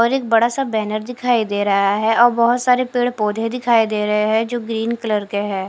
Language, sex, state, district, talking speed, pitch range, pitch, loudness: Hindi, female, Punjab, Fazilka, 230 wpm, 210-240 Hz, 225 Hz, -18 LUFS